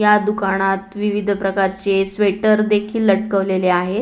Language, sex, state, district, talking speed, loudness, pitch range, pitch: Marathi, female, Maharashtra, Aurangabad, 120 wpm, -18 LUFS, 195-210 Hz, 200 Hz